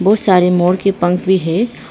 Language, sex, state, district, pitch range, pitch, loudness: Hindi, female, Arunachal Pradesh, Papum Pare, 180-195 Hz, 185 Hz, -14 LUFS